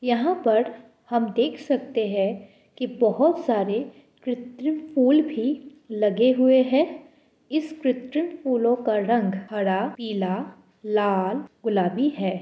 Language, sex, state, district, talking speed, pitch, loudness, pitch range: Hindi, female, Bihar, Kishanganj, 120 wpm, 240 Hz, -24 LUFS, 215-275 Hz